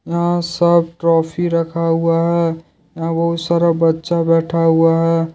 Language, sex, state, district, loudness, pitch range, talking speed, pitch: Hindi, male, Jharkhand, Deoghar, -16 LUFS, 165-170 Hz, 145 wpm, 165 Hz